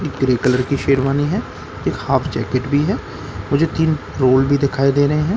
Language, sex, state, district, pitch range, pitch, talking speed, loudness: Hindi, male, Bihar, Katihar, 130-145 Hz, 140 Hz, 225 wpm, -18 LUFS